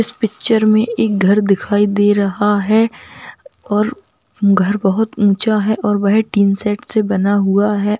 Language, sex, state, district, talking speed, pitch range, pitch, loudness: Hindi, female, Bihar, Darbhanga, 165 wpm, 200-220 Hz, 210 Hz, -15 LUFS